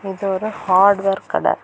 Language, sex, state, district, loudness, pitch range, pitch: Tamil, female, Tamil Nadu, Kanyakumari, -17 LUFS, 195-200 Hz, 195 Hz